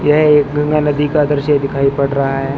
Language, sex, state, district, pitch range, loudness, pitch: Hindi, male, Rajasthan, Bikaner, 140-150 Hz, -14 LUFS, 145 Hz